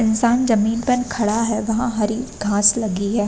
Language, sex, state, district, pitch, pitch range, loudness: Hindi, female, Uttar Pradesh, Varanasi, 225 Hz, 210-235 Hz, -19 LUFS